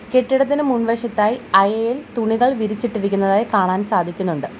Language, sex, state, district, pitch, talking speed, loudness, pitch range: Malayalam, female, Kerala, Kollam, 225 Hz, 90 wpm, -18 LUFS, 200-245 Hz